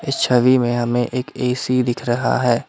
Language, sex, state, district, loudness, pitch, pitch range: Hindi, male, Assam, Kamrup Metropolitan, -18 LUFS, 125 Hz, 120-130 Hz